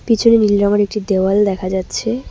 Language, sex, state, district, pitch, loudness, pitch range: Bengali, female, West Bengal, Cooch Behar, 205 Hz, -15 LUFS, 195-225 Hz